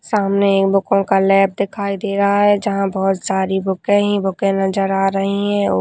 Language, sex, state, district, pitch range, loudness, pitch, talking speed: Hindi, female, Rajasthan, Nagaur, 195-200 Hz, -16 LUFS, 195 Hz, 215 wpm